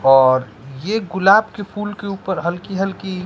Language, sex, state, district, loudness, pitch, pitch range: Hindi, male, Bihar, West Champaran, -18 LUFS, 190 Hz, 165-200 Hz